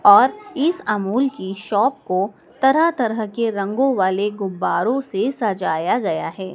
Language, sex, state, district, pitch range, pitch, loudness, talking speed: Hindi, female, Madhya Pradesh, Dhar, 195-270 Hz, 220 Hz, -20 LUFS, 145 wpm